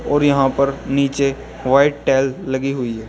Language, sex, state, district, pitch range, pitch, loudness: Hindi, male, Uttar Pradesh, Saharanpur, 135-140 Hz, 135 Hz, -18 LUFS